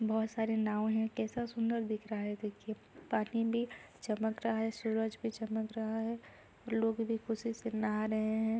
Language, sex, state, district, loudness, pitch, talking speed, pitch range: Hindi, female, Uttar Pradesh, Varanasi, -36 LUFS, 220 Hz, 190 wpm, 220-225 Hz